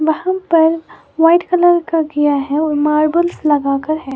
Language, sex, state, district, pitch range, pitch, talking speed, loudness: Hindi, female, Uttar Pradesh, Lalitpur, 300-345 Hz, 315 Hz, 160 wpm, -14 LUFS